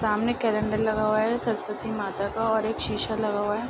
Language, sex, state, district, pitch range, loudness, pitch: Hindi, female, Bihar, Araria, 215-225 Hz, -26 LUFS, 215 Hz